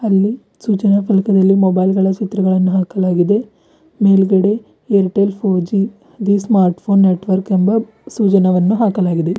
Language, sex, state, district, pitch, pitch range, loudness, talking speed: Kannada, female, Karnataka, Bidar, 195 Hz, 190-210 Hz, -15 LUFS, 115 wpm